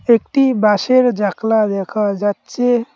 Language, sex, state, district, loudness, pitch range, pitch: Bengali, male, West Bengal, Cooch Behar, -16 LUFS, 205-245 Hz, 225 Hz